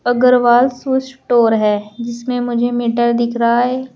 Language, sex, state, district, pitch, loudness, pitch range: Hindi, female, Uttar Pradesh, Shamli, 240 Hz, -15 LUFS, 235-250 Hz